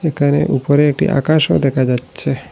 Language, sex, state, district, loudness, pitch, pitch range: Bengali, male, Assam, Hailakandi, -15 LUFS, 145 Hz, 135-150 Hz